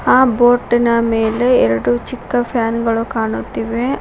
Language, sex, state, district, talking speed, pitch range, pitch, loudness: Kannada, female, Karnataka, Koppal, 135 wpm, 220-240 Hz, 230 Hz, -15 LUFS